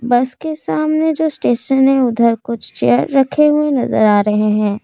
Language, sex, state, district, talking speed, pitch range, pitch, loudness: Hindi, female, Assam, Kamrup Metropolitan, 185 wpm, 215-300 Hz, 250 Hz, -15 LUFS